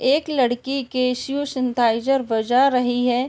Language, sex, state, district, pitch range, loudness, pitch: Hindi, female, Uttar Pradesh, Varanasi, 245-270 Hz, -20 LUFS, 255 Hz